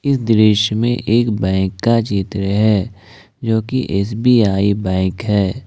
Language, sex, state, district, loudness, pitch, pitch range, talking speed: Hindi, male, Jharkhand, Ranchi, -16 LUFS, 105 Hz, 100-115 Hz, 140 wpm